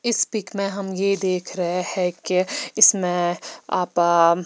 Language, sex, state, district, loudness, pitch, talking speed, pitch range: Hindi, female, Himachal Pradesh, Shimla, -21 LUFS, 185 Hz, 150 wpm, 180-200 Hz